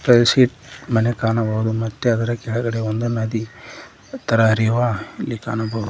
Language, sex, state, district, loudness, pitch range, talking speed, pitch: Kannada, male, Karnataka, Koppal, -20 LUFS, 110-120 Hz, 130 wpm, 115 Hz